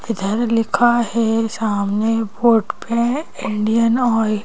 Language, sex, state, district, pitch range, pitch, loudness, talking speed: Hindi, female, Madhya Pradesh, Bhopal, 215-235 Hz, 225 Hz, -18 LUFS, 120 wpm